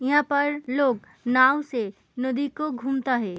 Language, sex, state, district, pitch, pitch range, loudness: Hindi, female, Uttar Pradesh, Muzaffarnagar, 260 Hz, 245-285 Hz, -24 LUFS